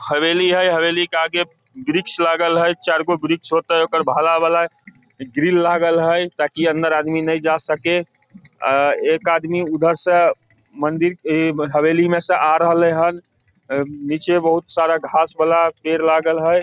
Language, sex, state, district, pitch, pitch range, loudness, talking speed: Maithili, male, Bihar, Samastipur, 165 Hz, 160-170 Hz, -17 LUFS, 150 wpm